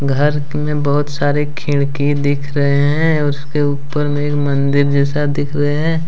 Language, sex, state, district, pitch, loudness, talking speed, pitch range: Hindi, male, Jharkhand, Deoghar, 145 Hz, -16 LUFS, 190 wpm, 145-150 Hz